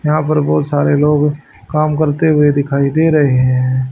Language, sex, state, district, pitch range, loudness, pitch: Hindi, male, Haryana, Rohtak, 140-155 Hz, -13 LUFS, 150 Hz